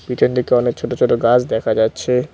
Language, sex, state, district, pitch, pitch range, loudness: Bengali, male, West Bengal, Cooch Behar, 125 Hz, 120-125 Hz, -16 LUFS